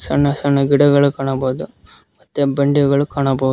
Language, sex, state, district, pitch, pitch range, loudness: Kannada, male, Karnataka, Koppal, 140 Hz, 135-140 Hz, -16 LUFS